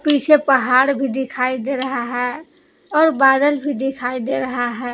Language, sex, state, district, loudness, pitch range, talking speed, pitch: Hindi, female, Jharkhand, Palamu, -17 LUFS, 250-290 Hz, 170 wpm, 270 Hz